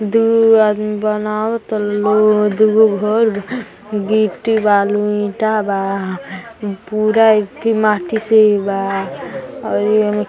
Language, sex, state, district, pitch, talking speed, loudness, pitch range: Hindi, female, Uttar Pradesh, Gorakhpur, 210 Hz, 120 wpm, -15 LUFS, 205-220 Hz